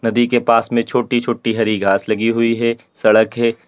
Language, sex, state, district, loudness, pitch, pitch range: Hindi, male, Uttar Pradesh, Lalitpur, -16 LUFS, 115 Hz, 110-120 Hz